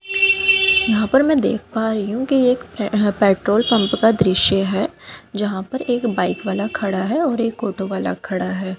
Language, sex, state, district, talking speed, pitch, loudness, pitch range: Hindi, female, Haryana, Jhajjar, 185 wpm, 220 Hz, -18 LUFS, 195-255 Hz